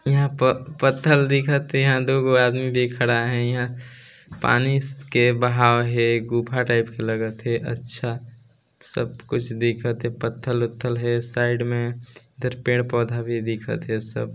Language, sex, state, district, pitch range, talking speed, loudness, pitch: Hindi, male, Chhattisgarh, Balrampur, 120-130 Hz, 165 wpm, -22 LUFS, 120 Hz